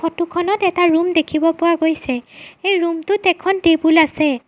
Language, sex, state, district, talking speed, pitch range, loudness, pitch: Assamese, female, Assam, Sonitpur, 175 wpm, 320-360 Hz, -16 LUFS, 335 Hz